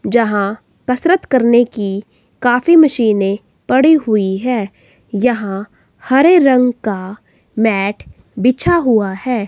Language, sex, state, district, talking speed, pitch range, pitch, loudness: Hindi, female, Himachal Pradesh, Shimla, 105 wpm, 205-255 Hz, 235 Hz, -14 LUFS